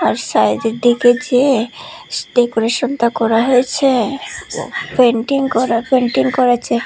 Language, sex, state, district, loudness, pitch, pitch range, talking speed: Bengali, female, Tripura, Unakoti, -15 LUFS, 245 Hz, 235-260 Hz, 95 wpm